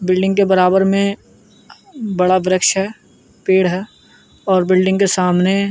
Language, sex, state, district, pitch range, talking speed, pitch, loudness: Hindi, male, Uttar Pradesh, Jyotiba Phule Nagar, 185-195 Hz, 145 wpm, 190 Hz, -15 LUFS